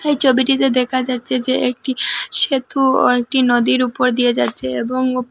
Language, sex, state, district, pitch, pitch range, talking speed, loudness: Bengali, female, Assam, Hailakandi, 255 Hz, 245-265 Hz, 160 wpm, -16 LUFS